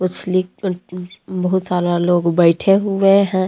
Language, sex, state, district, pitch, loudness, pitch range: Hindi, female, Jharkhand, Deoghar, 185 Hz, -16 LUFS, 180-190 Hz